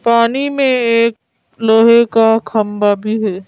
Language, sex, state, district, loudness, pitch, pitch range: Hindi, female, Madhya Pradesh, Bhopal, -13 LUFS, 225 Hz, 215-235 Hz